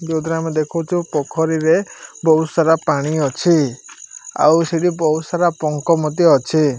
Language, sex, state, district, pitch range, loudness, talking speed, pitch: Odia, male, Odisha, Malkangiri, 155-165 Hz, -17 LUFS, 135 wpm, 160 Hz